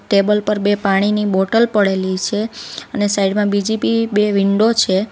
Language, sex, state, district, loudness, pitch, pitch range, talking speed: Gujarati, female, Gujarat, Valsad, -16 LUFS, 205 Hz, 195-220 Hz, 175 wpm